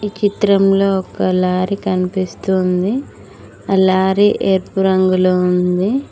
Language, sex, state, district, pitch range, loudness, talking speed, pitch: Telugu, female, Telangana, Mahabubabad, 185-195 Hz, -15 LUFS, 110 wpm, 190 Hz